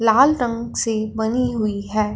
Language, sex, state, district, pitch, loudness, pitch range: Hindi, female, Punjab, Fazilka, 225 Hz, -20 LUFS, 215-240 Hz